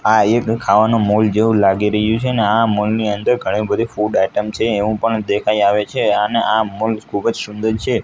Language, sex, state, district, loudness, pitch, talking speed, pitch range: Gujarati, male, Gujarat, Gandhinagar, -16 LUFS, 110 Hz, 225 wpm, 105-115 Hz